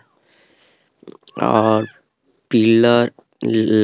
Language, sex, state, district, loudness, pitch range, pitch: Hindi, male, Bihar, Vaishali, -17 LUFS, 110-120 Hz, 110 Hz